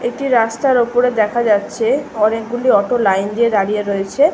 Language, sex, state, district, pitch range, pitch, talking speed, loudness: Bengali, female, West Bengal, Malda, 210-245 Hz, 235 Hz, 150 wpm, -16 LUFS